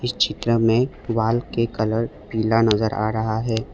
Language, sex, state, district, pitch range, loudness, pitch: Hindi, male, Assam, Kamrup Metropolitan, 110-115 Hz, -21 LUFS, 115 Hz